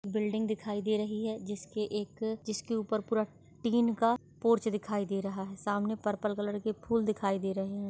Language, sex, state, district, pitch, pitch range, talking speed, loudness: Hindi, female, Maharashtra, Nagpur, 210 Hz, 205-220 Hz, 195 wpm, -33 LUFS